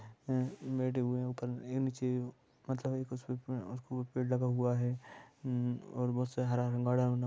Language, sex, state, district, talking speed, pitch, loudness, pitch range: Hindi, male, Bihar, East Champaran, 90 wpm, 125 Hz, -36 LUFS, 125-130 Hz